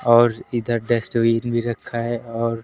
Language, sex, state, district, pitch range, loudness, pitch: Hindi, male, Uttar Pradesh, Lucknow, 115-120 Hz, -21 LUFS, 115 Hz